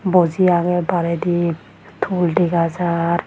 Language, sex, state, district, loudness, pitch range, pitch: Chakma, female, Tripura, Unakoti, -18 LUFS, 170-180 Hz, 175 Hz